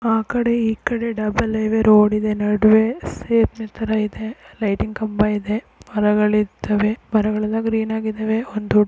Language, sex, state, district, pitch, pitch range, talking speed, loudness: Kannada, female, Karnataka, Chamarajanagar, 220 Hz, 210-225 Hz, 140 wpm, -19 LUFS